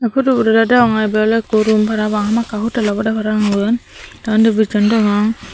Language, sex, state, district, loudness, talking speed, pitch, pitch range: Chakma, female, Tripura, Dhalai, -15 LUFS, 185 wpm, 220 Hz, 215-225 Hz